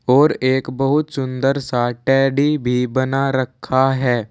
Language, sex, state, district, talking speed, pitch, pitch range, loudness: Hindi, male, Uttar Pradesh, Saharanpur, 140 wpm, 130 Hz, 125-135 Hz, -18 LUFS